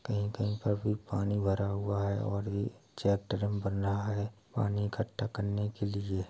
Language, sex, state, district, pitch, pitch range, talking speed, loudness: Hindi, male, Uttar Pradesh, Hamirpur, 100 Hz, 100-105 Hz, 170 wpm, -33 LUFS